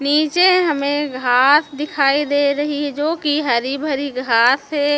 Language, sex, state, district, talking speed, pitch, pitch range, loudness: Hindi, female, Chhattisgarh, Raipur, 145 wpm, 290 Hz, 275-295 Hz, -17 LUFS